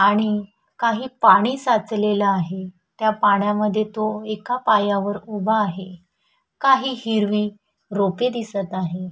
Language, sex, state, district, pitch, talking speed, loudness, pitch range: Marathi, female, Maharashtra, Chandrapur, 210 Hz, 120 wpm, -21 LUFS, 200-225 Hz